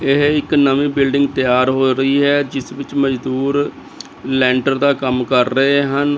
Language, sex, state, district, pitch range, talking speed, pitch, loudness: Punjabi, male, Chandigarh, Chandigarh, 130-140 Hz, 165 wpm, 135 Hz, -16 LUFS